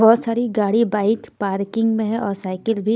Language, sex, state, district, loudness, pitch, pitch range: Hindi, female, Bihar, Patna, -20 LUFS, 220 Hz, 200-225 Hz